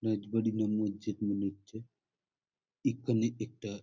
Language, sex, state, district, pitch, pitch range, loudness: Bengali, male, West Bengal, Malda, 110 Hz, 105-115 Hz, -34 LUFS